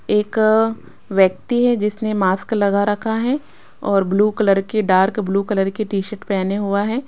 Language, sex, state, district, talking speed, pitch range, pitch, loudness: Hindi, female, Rajasthan, Jaipur, 180 wpm, 195-220 Hz, 205 Hz, -18 LUFS